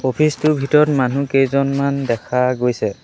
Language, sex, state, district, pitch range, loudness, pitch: Assamese, male, Assam, Sonitpur, 125-145 Hz, -17 LUFS, 140 Hz